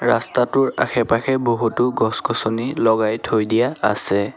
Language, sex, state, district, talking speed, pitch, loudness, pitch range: Assamese, male, Assam, Sonitpur, 110 wpm, 115 Hz, -19 LUFS, 110-125 Hz